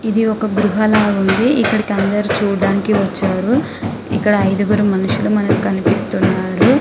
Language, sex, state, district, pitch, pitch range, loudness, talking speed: Telugu, female, Telangana, Karimnagar, 205 Hz, 190-215 Hz, -15 LUFS, 130 wpm